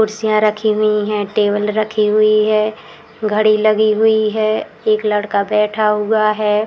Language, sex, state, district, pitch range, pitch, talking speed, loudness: Hindi, female, Uttar Pradesh, Muzaffarnagar, 210-215 Hz, 215 Hz, 155 wpm, -15 LUFS